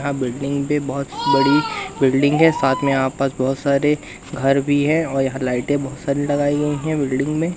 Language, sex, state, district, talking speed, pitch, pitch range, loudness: Hindi, male, Madhya Pradesh, Katni, 205 wpm, 140 Hz, 135-145 Hz, -19 LUFS